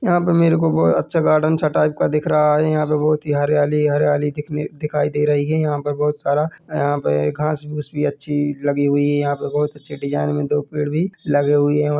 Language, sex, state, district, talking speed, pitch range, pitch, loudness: Hindi, male, Chhattisgarh, Bilaspur, 245 wpm, 145-155 Hz, 150 Hz, -19 LUFS